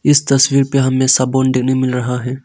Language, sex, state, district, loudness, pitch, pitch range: Hindi, male, Arunachal Pradesh, Longding, -14 LUFS, 130 Hz, 130-135 Hz